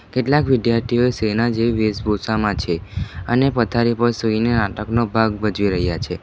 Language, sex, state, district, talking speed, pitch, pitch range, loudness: Gujarati, male, Gujarat, Valsad, 145 wpm, 110 Hz, 105-120 Hz, -19 LUFS